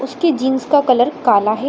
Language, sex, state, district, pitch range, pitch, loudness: Hindi, female, Bihar, Samastipur, 250-290 Hz, 265 Hz, -15 LUFS